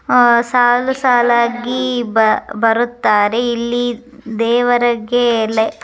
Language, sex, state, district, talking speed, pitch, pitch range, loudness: Kannada, male, Karnataka, Dharwad, 80 wpm, 240 Hz, 230-245 Hz, -14 LUFS